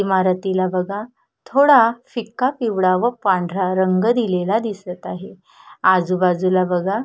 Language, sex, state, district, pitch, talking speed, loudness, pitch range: Marathi, female, Maharashtra, Solapur, 190 Hz, 110 wpm, -18 LUFS, 185-230 Hz